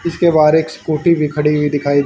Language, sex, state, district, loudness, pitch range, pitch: Hindi, male, Haryana, Rohtak, -14 LUFS, 150-165 Hz, 155 Hz